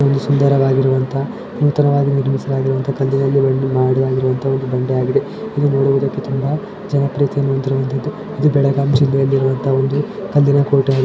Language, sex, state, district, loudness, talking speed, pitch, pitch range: Kannada, male, Karnataka, Belgaum, -16 LUFS, 140 wpm, 135 Hz, 135-140 Hz